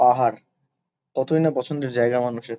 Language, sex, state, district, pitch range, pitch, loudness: Bengali, male, West Bengal, Kolkata, 125-150 Hz, 130 Hz, -23 LUFS